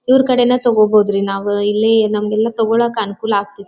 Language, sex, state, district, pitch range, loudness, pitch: Kannada, female, Karnataka, Dharwad, 205-235 Hz, -15 LUFS, 215 Hz